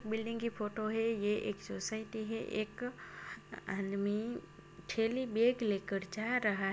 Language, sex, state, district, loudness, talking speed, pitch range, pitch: Bhojpuri, female, Bihar, Saran, -37 LUFS, 140 wpm, 200-225 Hz, 215 Hz